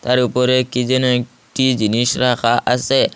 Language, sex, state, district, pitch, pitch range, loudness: Bengali, male, Assam, Hailakandi, 125 Hz, 120-125 Hz, -16 LUFS